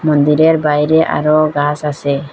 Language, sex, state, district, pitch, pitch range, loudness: Bengali, female, Assam, Hailakandi, 150 Hz, 145-155 Hz, -13 LUFS